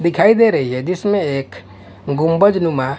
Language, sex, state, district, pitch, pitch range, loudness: Hindi, male, Punjab, Kapurthala, 150 Hz, 130-190 Hz, -16 LUFS